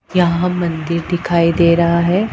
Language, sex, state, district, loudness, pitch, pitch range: Hindi, female, Punjab, Pathankot, -15 LUFS, 170 Hz, 170-175 Hz